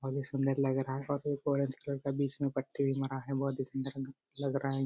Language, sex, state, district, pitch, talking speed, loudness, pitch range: Hindi, male, Jharkhand, Jamtara, 135 Hz, 285 wpm, -35 LUFS, 135-140 Hz